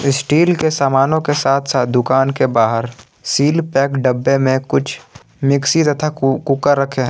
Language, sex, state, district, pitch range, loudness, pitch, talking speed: Hindi, male, Jharkhand, Palamu, 130-145 Hz, -15 LUFS, 135 Hz, 160 wpm